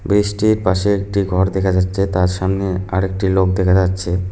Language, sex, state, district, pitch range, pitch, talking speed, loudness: Bengali, male, West Bengal, Cooch Behar, 95-100 Hz, 95 Hz, 180 wpm, -17 LUFS